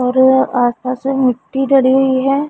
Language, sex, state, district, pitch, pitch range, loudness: Hindi, female, Punjab, Pathankot, 260 Hz, 255-270 Hz, -14 LUFS